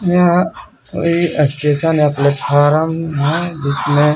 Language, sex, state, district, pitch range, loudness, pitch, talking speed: Hindi, male, Bihar, Kaimur, 145-170 Hz, -15 LUFS, 150 Hz, 100 wpm